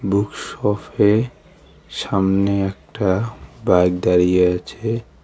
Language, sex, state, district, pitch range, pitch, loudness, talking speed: Bengali, male, West Bengal, Alipurduar, 90-105 Hz, 100 Hz, -19 LUFS, 90 wpm